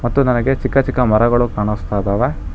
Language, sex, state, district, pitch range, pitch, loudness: Kannada, male, Karnataka, Bangalore, 105-130 Hz, 120 Hz, -16 LUFS